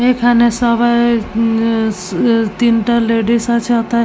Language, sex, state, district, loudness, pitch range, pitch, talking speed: Bengali, female, West Bengal, Jalpaiguri, -14 LUFS, 225-235 Hz, 235 Hz, 135 wpm